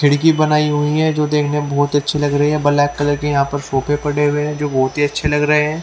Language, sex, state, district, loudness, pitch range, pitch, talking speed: Hindi, male, Haryana, Charkhi Dadri, -16 LUFS, 145-150 Hz, 145 Hz, 300 wpm